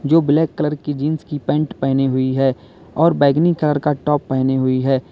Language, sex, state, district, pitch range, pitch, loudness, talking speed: Hindi, male, Uttar Pradesh, Lalitpur, 135-150 Hz, 145 Hz, -18 LUFS, 200 wpm